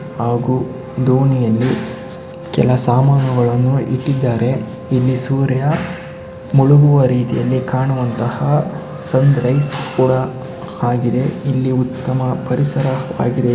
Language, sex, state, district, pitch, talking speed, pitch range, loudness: Kannada, male, Karnataka, Shimoga, 130 Hz, 70 wpm, 125-135 Hz, -16 LUFS